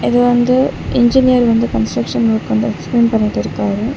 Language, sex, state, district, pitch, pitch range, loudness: Tamil, female, Tamil Nadu, Chennai, 235 Hz, 220-245 Hz, -14 LUFS